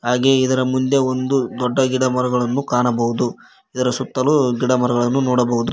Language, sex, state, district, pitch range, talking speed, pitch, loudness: Kannada, male, Karnataka, Koppal, 125-130 Hz, 125 wpm, 130 Hz, -18 LUFS